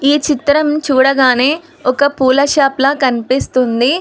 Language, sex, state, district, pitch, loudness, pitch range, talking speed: Telugu, female, Telangana, Hyderabad, 275 Hz, -13 LUFS, 260-290 Hz, 120 wpm